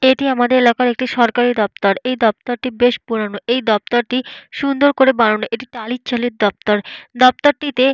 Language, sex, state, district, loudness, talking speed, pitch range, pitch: Bengali, female, Jharkhand, Jamtara, -16 LUFS, 160 wpm, 225-255 Hz, 245 Hz